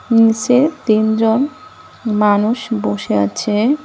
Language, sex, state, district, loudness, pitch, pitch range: Bengali, male, West Bengal, Cooch Behar, -15 LUFS, 225 Hz, 210-255 Hz